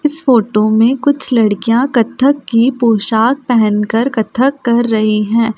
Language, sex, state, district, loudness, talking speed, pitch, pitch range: Hindi, female, Delhi, New Delhi, -13 LUFS, 140 wpm, 235 Hz, 220-255 Hz